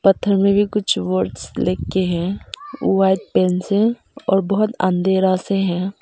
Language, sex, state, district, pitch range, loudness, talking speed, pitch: Hindi, female, Arunachal Pradesh, Papum Pare, 185-205 Hz, -19 LUFS, 160 wpm, 195 Hz